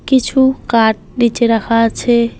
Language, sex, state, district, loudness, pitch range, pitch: Bengali, female, West Bengal, Alipurduar, -14 LUFS, 230-255 Hz, 235 Hz